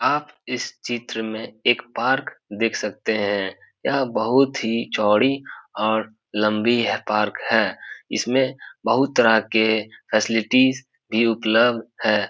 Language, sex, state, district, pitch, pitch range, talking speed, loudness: Hindi, male, Bihar, Supaul, 110 Hz, 110-120 Hz, 125 wpm, -21 LUFS